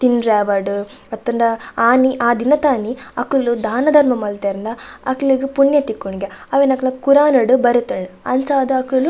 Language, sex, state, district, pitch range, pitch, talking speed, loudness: Tulu, female, Karnataka, Dakshina Kannada, 225-270 Hz, 250 Hz, 140 wpm, -16 LUFS